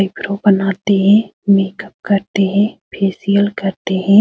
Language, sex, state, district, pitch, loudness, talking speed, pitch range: Hindi, female, Bihar, Supaul, 200 Hz, -15 LUFS, 130 wpm, 195-200 Hz